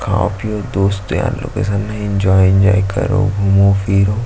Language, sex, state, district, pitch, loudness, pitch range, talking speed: Hindi, male, Chhattisgarh, Jashpur, 100 Hz, -15 LUFS, 95-105 Hz, 185 wpm